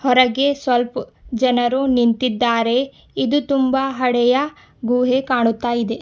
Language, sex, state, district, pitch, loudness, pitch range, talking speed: Kannada, female, Karnataka, Bidar, 250 Hz, -18 LUFS, 240-265 Hz, 100 wpm